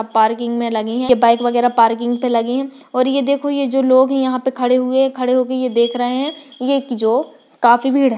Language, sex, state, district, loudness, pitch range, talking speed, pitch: Hindi, female, Uttarakhand, Tehri Garhwal, -16 LUFS, 235-270 Hz, 240 wpm, 255 Hz